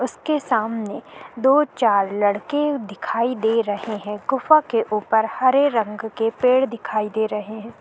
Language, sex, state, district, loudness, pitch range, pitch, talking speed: Hindi, female, Goa, North and South Goa, -21 LUFS, 215-260 Hz, 225 Hz, 155 wpm